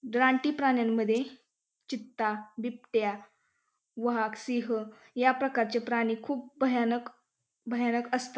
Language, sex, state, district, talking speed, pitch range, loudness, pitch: Marathi, female, Maharashtra, Pune, 95 wpm, 225-260 Hz, -30 LUFS, 240 Hz